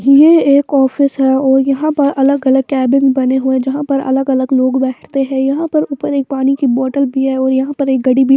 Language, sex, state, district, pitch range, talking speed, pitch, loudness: Hindi, female, Bihar, Patna, 265-280 Hz, 235 wpm, 270 Hz, -13 LUFS